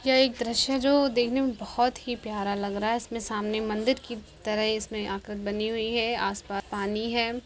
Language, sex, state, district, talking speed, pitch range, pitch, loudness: Hindi, female, Bihar, Kishanganj, 210 wpm, 210-240 Hz, 225 Hz, -28 LUFS